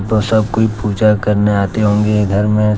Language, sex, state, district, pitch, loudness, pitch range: Hindi, male, Jharkhand, Deoghar, 105 Hz, -14 LUFS, 105-110 Hz